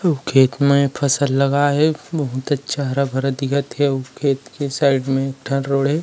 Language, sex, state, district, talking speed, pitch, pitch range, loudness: Chhattisgarhi, male, Chhattisgarh, Rajnandgaon, 210 wpm, 140 Hz, 135-145 Hz, -19 LUFS